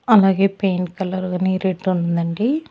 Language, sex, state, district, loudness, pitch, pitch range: Telugu, female, Andhra Pradesh, Annamaya, -19 LUFS, 190 Hz, 180-195 Hz